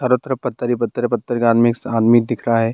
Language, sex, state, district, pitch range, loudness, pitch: Hindi, male, Bihar, Bhagalpur, 115-120 Hz, -18 LUFS, 120 Hz